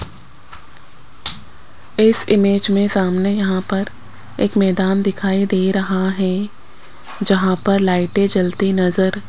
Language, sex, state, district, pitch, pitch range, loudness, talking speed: Hindi, female, Rajasthan, Jaipur, 195 Hz, 190-200 Hz, -17 LUFS, 115 wpm